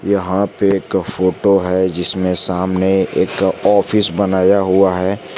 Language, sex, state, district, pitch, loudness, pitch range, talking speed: Hindi, male, Jharkhand, Garhwa, 95 Hz, -15 LUFS, 95-100 Hz, 135 wpm